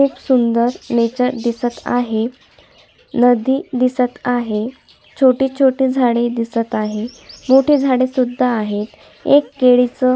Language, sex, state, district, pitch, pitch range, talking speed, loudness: Marathi, female, Maharashtra, Sindhudurg, 250 Hz, 235-260 Hz, 120 wpm, -16 LUFS